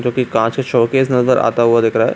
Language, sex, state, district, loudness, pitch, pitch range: Hindi, male, Bihar, Supaul, -14 LUFS, 120 Hz, 115-130 Hz